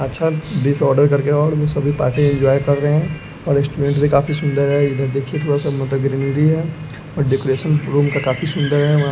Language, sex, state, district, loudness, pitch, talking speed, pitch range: Hindi, male, Bihar, West Champaran, -17 LUFS, 145 Hz, 215 wpm, 140-150 Hz